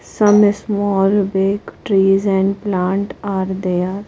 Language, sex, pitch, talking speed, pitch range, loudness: English, female, 195 Hz, 115 wpm, 190-205 Hz, -16 LUFS